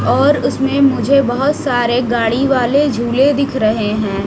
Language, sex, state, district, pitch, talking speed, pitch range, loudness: Hindi, female, Chhattisgarh, Raipur, 250 Hz, 155 wpm, 235-275 Hz, -14 LUFS